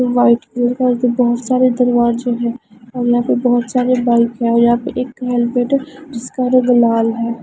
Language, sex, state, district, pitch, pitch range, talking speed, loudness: Hindi, female, Himachal Pradesh, Shimla, 245 Hz, 235-250 Hz, 200 wpm, -15 LUFS